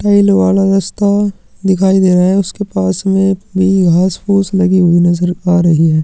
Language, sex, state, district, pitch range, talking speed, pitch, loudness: Hindi, male, Chhattisgarh, Sukma, 180-195 Hz, 200 wpm, 190 Hz, -12 LUFS